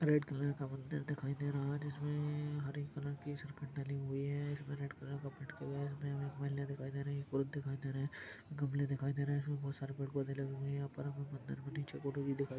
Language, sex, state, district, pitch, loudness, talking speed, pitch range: Hindi, male, Chhattisgarh, Balrampur, 140 Hz, -41 LUFS, 270 wpm, 140-145 Hz